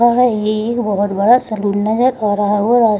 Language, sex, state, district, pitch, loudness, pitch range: Hindi, female, Bihar, Gaya, 215 Hz, -15 LUFS, 205-240 Hz